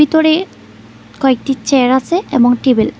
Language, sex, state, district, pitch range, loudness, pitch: Bengali, female, Tripura, West Tripura, 250-315 Hz, -13 LUFS, 270 Hz